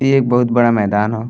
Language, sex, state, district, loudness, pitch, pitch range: Bhojpuri, male, Uttar Pradesh, Deoria, -14 LUFS, 120 Hz, 110-125 Hz